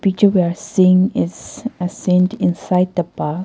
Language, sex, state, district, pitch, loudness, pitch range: English, female, Nagaland, Kohima, 185 Hz, -17 LUFS, 180-195 Hz